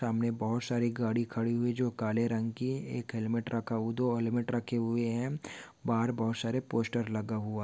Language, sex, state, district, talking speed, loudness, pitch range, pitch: Hindi, male, Maharashtra, Dhule, 195 wpm, -33 LUFS, 115-120 Hz, 115 Hz